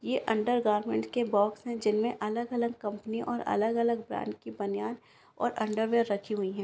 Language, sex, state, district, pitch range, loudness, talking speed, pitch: Hindi, female, Bihar, Madhepura, 205-235 Hz, -31 LUFS, 165 wpm, 220 Hz